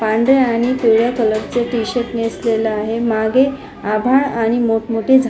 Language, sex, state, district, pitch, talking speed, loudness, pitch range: Marathi, female, Maharashtra, Pune, 230 Hz, 160 wpm, -16 LUFS, 225-245 Hz